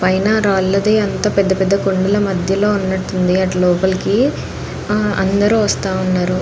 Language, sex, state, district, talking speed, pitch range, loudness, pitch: Telugu, female, Andhra Pradesh, Anantapur, 140 wpm, 185-205 Hz, -16 LUFS, 190 Hz